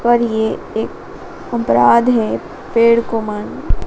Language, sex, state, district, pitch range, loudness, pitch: Hindi, female, Madhya Pradesh, Dhar, 220-235 Hz, -16 LUFS, 230 Hz